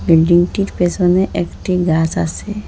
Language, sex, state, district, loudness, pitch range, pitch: Bengali, female, Assam, Hailakandi, -15 LUFS, 170-190 Hz, 180 Hz